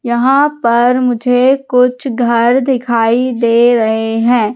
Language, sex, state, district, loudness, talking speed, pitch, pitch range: Hindi, female, Madhya Pradesh, Katni, -12 LUFS, 120 wpm, 245 Hz, 235-255 Hz